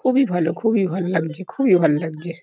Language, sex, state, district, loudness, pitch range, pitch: Bengali, male, West Bengal, Kolkata, -20 LUFS, 165-220 Hz, 180 Hz